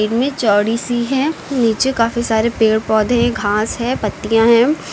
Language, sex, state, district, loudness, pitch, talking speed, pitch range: Hindi, female, Uttar Pradesh, Lucknow, -16 LUFS, 230 Hz, 160 wpm, 220-245 Hz